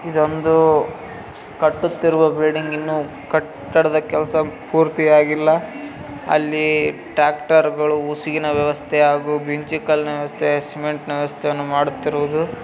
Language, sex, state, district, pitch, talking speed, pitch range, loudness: Kannada, male, Karnataka, Raichur, 150 Hz, 95 wpm, 150-155 Hz, -18 LUFS